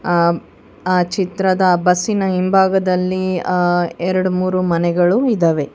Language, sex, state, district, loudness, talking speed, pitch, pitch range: Kannada, female, Karnataka, Bangalore, -16 LUFS, 105 wpm, 185 Hz, 175-185 Hz